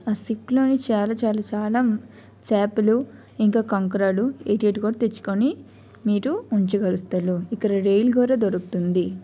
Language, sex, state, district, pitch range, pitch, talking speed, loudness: Telugu, female, Andhra Pradesh, Srikakulam, 200-230 Hz, 215 Hz, 115 wpm, -22 LUFS